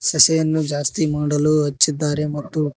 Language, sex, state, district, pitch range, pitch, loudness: Kannada, male, Karnataka, Koppal, 145-155 Hz, 150 Hz, -18 LUFS